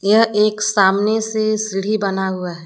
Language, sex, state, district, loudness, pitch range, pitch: Hindi, female, Jharkhand, Palamu, -17 LUFS, 190-215 Hz, 210 Hz